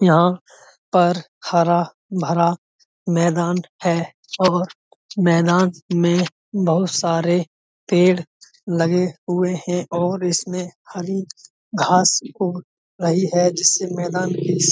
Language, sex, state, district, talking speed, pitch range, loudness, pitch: Hindi, male, Uttar Pradesh, Budaun, 100 wpm, 170-180 Hz, -19 LUFS, 175 Hz